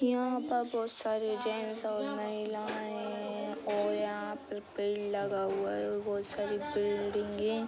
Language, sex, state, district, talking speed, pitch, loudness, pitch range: Hindi, female, Bihar, East Champaran, 155 wpm, 210 Hz, -35 LUFS, 205-220 Hz